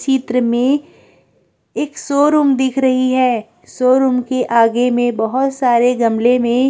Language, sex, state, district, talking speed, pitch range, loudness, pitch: Hindi, female, Chhattisgarh, Korba, 135 wpm, 240-265 Hz, -15 LUFS, 255 Hz